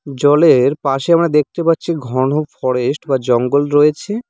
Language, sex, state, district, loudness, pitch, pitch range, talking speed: Bengali, male, West Bengal, Cooch Behar, -15 LUFS, 145 Hz, 135-165 Hz, 140 wpm